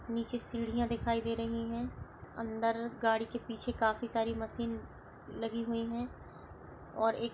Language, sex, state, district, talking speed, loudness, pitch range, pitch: Hindi, female, Chhattisgarh, Sarguja, 155 wpm, -36 LUFS, 230-235 Hz, 230 Hz